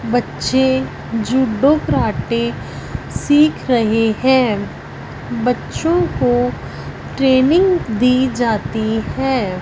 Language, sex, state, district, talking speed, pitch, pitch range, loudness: Hindi, female, Punjab, Fazilka, 75 wpm, 230 Hz, 175-260 Hz, -16 LUFS